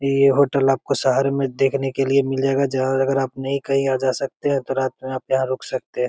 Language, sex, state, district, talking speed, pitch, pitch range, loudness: Hindi, male, Bihar, Begusarai, 235 wpm, 135 Hz, 130-135 Hz, -20 LUFS